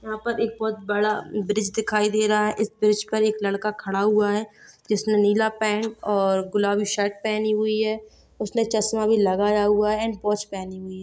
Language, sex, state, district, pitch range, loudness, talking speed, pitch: Hindi, female, Bihar, Gopalganj, 205-215 Hz, -23 LUFS, 200 wpm, 210 Hz